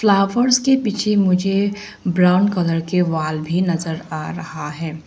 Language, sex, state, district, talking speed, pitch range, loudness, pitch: Hindi, female, Arunachal Pradesh, Longding, 155 wpm, 160-205 Hz, -18 LUFS, 180 Hz